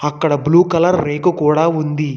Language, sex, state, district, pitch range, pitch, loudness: Telugu, male, Telangana, Hyderabad, 150-170 Hz, 155 Hz, -15 LUFS